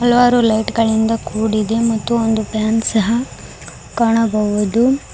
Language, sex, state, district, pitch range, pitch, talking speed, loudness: Kannada, female, Karnataka, Koppal, 220-235 Hz, 225 Hz, 95 wpm, -16 LUFS